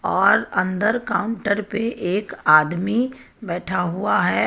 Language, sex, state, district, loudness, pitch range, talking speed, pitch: Hindi, female, Jharkhand, Ranchi, -20 LUFS, 180-225 Hz, 120 wpm, 200 Hz